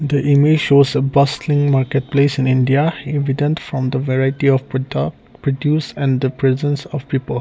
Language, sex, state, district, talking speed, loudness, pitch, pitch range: English, male, Nagaland, Kohima, 170 wpm, -17 LUFS, 140 Hz, 135-145 Hz